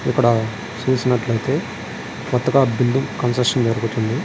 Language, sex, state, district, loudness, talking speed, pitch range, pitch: Telugu, male, Andhra Pradesh, Srikakulam, -20 LUFS, 100 wpm, 115-125 Hz, 120 Hz